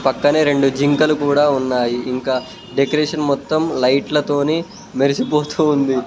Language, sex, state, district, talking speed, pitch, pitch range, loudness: Telugu, male, Telangana, Mahabubabad, 110 wpm, 145 Hz, 135-150 Hz, -17 LUFS